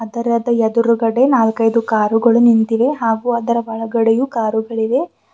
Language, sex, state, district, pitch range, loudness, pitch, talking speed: Kannada, female, Karnataka, Bidar, 225-235 Hz, -15 LUFS, 230 Hz, 100 wpm